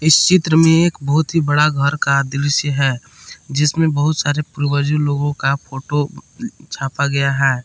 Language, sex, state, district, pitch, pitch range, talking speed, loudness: Hindi, male, Jharkhand, Palamu, 145 Hz, 140-155 Hz, 165 wpm, -16 LUFS